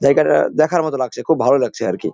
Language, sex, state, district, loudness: Bengali, male, West Bengal, Jalpaiguri, -17 LUFS